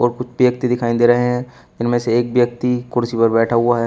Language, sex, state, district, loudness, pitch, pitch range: Hindi, male, Uttar Pradesh, Shamli, -17 LUFS, 120 Hz, 115-125 Hz